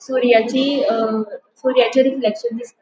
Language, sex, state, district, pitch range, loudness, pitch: Konkani, female, Goa, North and South Goa, 230-265 Hz, -17 LUFS, 250 Hz